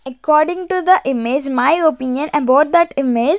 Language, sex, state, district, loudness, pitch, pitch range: English, female, Maharashtra, Gondia, -15 LUFS, 295 Hz, 265-335 Hz